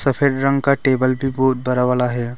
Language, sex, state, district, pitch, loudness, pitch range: Hindi, male, Arunachal Pradesh, Longding, 130 Hz, -18 LUFS, 125-135 Hz